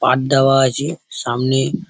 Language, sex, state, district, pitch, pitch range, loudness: Bengali, male, West Bengal, Paschim Medinipur, 135 Hz, 130-140 Hz, -17 LUFS